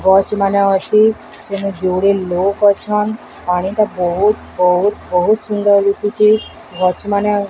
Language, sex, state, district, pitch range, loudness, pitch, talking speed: Odia, female, Odisha, Sambalpur, 185-210 Hz, -15 LUFS, 200 Hz, 130 wpm